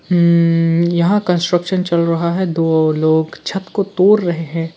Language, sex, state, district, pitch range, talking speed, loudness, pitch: Hindi, male, Arunachal Pradesh, Lower Dibang Valley, 165-185 Hz, 150 wpm, -15 LUFS, 170 Hz